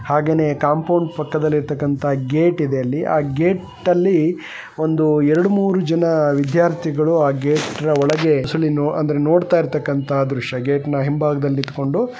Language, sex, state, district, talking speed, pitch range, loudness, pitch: Kannada, male, Karnataka, Bellary, 110 wpm, 145-165 Hz, -18 LUFS, 150 Hz